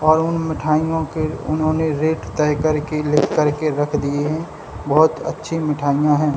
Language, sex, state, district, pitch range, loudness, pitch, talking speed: Hindi, male, Bihar, Samastipur, 150-160 Hz, -19 LUFS, 155 Hz, 160 wpm